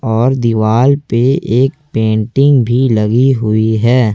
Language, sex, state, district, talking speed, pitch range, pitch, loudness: Hindi, male, Jharkhand, Ranchi, 130 wpm, 110-130 Hz, 120 Hz, -12 LUFS